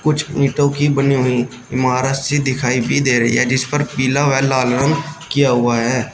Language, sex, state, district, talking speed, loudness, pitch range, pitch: Hindi, male, Uttar Pradesh, Shamli, 205 wpm, -16 LUFS, 125-140 Hz, 130 Hz